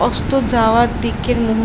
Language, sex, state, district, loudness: Bengali, female, West Bengal, Jhargram, -16 LUFS